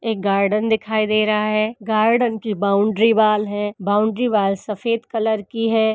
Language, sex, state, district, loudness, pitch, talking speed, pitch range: Hindi, female, Uttar Pradesh, Hamirpur, -19 LUFS, 215 Hz, 170 wpm, 205-225 Hz